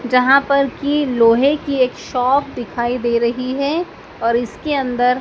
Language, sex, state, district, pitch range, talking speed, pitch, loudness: Hindi, female, Madhya Pradesh, Dhar, 245-280 Hz, 160 wpm, 255 Hz, -17 LUFS